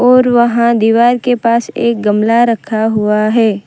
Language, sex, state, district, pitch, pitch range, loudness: Hindi, female, Gujarat, Valsad, 230 Hz, 220-235 Hz, -11 LUFS